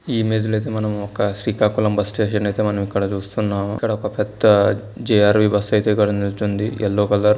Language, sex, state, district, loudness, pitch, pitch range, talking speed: Telugu, male, Andhra Pradesh, Srikakulam, -19 LUFS, 105 Hz, 105-110 Hz, 205 wpm